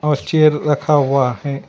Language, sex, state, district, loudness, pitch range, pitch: Hindi, male, Karnataka, Bangalore, -16 LUFS, 140-150 Hz, 150 Hz